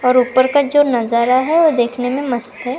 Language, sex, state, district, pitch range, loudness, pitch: Hindi, female, Karnataka, Bangalore, 245-285 Hz, -15 LUFS, 255 Hz